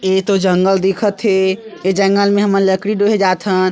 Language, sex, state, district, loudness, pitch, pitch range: Chhattisgarhi, male, Chhattisgarh, Sarguja, -14 LUFS, 195 Hz, 190-205 Hz